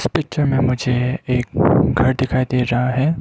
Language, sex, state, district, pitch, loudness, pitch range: Hindi, male, Arunachal Pradesh, Lower Dibang Valley, 130 Hz, -18 LUFS, 125-135 Hz